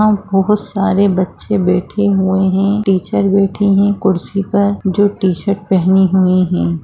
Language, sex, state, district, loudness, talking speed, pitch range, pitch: Hindi, female, Bihar, Jamui, -14 LUFS, 140 wpm, 190-200 Hz, 195 Hz